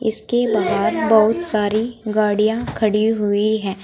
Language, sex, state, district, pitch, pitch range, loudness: Hindi, female, Uttar Pradesh, Saharanpur, 215 Hz, 210-220 Hz, -18 LUFS